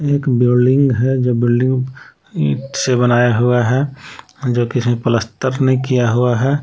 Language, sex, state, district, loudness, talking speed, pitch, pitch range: Hindi, male, Jharkhand, Palamu, -15 LUFS, 155 wpm, 125 Hz, 120-130 Hz